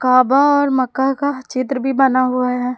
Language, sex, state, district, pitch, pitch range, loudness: Hindi, female, Jharkhand, Palamu, 260 Hz, 255-275 Hz, -16 LUFS